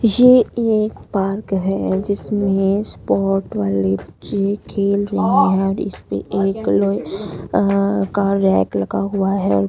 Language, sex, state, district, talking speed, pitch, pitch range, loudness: Hindi, female, Delhi, New Delhi, 130 wpm, 195 Hz, 190-200 Hz, -18 LUFS